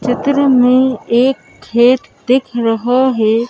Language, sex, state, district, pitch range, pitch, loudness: Hindi, female, Madhya Pradesh, Bhopal, 235-260 Hz, 250 Hz, -13 LUFS